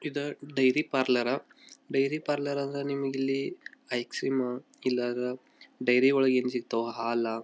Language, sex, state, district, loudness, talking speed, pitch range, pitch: Kannada, male, Karnataka, Belgaum, -29 LUFS, 130 wpm, 125-140 Hz, 135 Hz